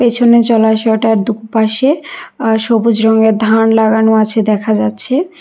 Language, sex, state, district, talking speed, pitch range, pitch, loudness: Bengali, female, Karnataka, Bangalore, 135 wpm, 220-235 Hz, 225 Hz, -12 LUFS